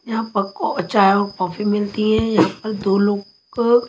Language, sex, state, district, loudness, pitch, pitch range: Hindi, female, Haryana, Charkhi Dadri, -19 LUFS, 205 Hz, 200-225 Hz